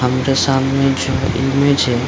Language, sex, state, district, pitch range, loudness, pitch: Hindi, male, Bihar, Supaul, 130-135 Hz, -16 LUFS, 135 Hz